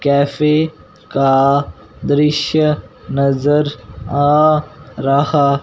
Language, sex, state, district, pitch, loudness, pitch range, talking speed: Hindi, male, Punjab, Fazilka, 145 Hz, -15 LUFS, 140-150 Hz, 65 wpm